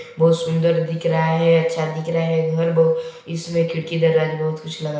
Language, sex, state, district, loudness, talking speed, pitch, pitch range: Hindi, male, Chhattisgarh, Balrampur, -19 LUFS, 205 wpm, 165 Hz, 160-165 Hz